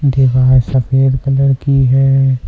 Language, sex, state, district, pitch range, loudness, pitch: Hindi, male, Uttar Pradesh, Lucknow, 130-135 Hz, -12 LUFS, 135 Hz